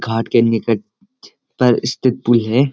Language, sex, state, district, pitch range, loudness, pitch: Hindi, male, Uttarakhand, Uttarkashi, 115-135 Hz, -16 LUFS, 120 Hz